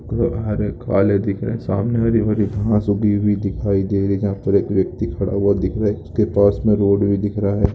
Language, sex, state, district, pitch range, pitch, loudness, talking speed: Hindi, male, Rajasthan, Nagaur, 100-110 Hz, 100 Hz, -19 LUFS, 215 wpm